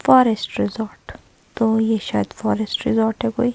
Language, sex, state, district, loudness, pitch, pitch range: Hindi, female, Himachal Pradesh, Shimla, -20 LUFS, 220 Hz, 205-230 Hz